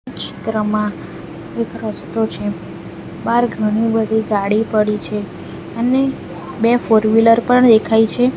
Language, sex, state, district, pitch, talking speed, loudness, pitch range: Gujarati, female, Gujarat, Valsad, 220 Hz, 115 wpm, -16 LUFS, 210-230 Hz